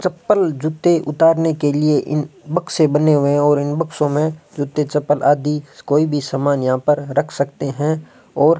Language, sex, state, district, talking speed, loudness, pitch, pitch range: Hindi, female, Rajasthan, Bikaner, 190 wpm, -17 LUFS, 150 Hz, 145-160 Hz